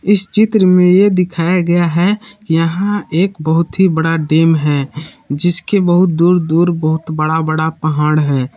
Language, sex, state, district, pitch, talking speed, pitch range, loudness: Hindi, male, Jharkhand, Palamu, 170 Hz, 160 wpm, 155-185 Hz, -13 LUFS